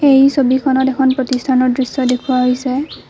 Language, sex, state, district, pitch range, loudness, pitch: Assamese, female, Assam, Kamrup Metropolitan, 255-270 Hz, -14 LUFS, 260 Hz